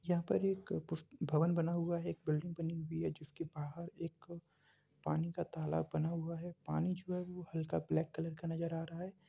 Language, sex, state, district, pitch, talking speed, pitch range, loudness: Hindi, male, Bihar, Samastipur, 165 Hz, 220 wpm, 160-170 Hz, -40 LUFS